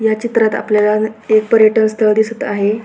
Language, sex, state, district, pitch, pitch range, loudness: Marathi, female, Maharashtra, Pune, 220 Hz, 215-220 Hz, -14 LUFS